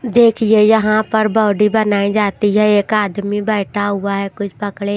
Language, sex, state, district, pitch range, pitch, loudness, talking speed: Hindi, female, Maharashtra, Washim, 205-215 Hz, 210 Hz, -15 LUFS, 170 wpm